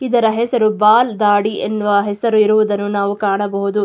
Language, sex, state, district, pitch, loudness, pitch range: Kannada, female, Karnataka, Mysore, 210 Hz, -15 LUFS, 205-220 Hz